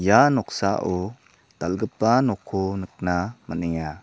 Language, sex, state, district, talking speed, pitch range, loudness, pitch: Garo, male, Meghalaya, South Garo Hills, 90 wpm, 90-110 Hz, -24 LUFS, 95 Hz